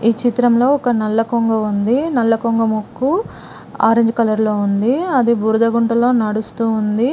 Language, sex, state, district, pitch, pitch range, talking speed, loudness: Telugu, female, Telangana, Mahabubabad, 230 Hz, 220-245 Hz, 150 wpm, -16 LUFS